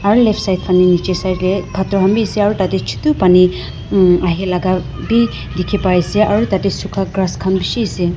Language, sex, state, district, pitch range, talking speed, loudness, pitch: Nagamese, female, Nagaland, Dimapur, 180-200 Hz, 205 wpm, -15 LUFS, 190 Hz